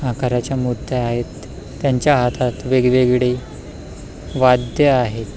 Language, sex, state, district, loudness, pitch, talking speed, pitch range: Marathi, male, Maharashtra, Pune, -17 LUFS, 125 Hz, 90 wpm, 125-130 Hz